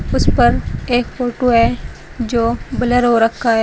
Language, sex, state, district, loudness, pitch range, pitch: Hindi, female, Uttar Pradesh, Shamli, -16 LUFS, 230-245 Hz, 240 Hz